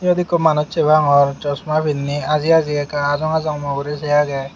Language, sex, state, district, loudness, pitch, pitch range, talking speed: Chakma, male, Tripura, Unakoti, -17 LUFS, 150 Hz, 145-155 Hz, 210 wpm